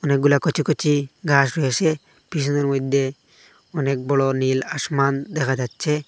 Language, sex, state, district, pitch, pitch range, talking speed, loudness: Bengali, male, Assam, Hailakandi, 140 Hz, 135-150 Hz, 130 wpm, -21 LUFS